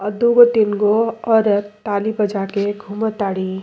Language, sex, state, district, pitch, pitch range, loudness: Bhojpuri, female, Uttar Pradesh, Deoria, 210 Hz, 200-220 Hz, -17 LUFS